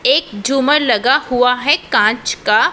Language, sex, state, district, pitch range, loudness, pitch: Hindi, female, Punjab, Pathankot, 250-295 Hz, -14 LUFS, 275 Hz